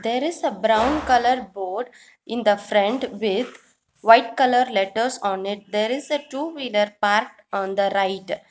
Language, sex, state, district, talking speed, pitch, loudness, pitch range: English, female, Telangana, Hyderabad, 170 wpm, 225 Hz, -21 LUFS, 205-255 Hz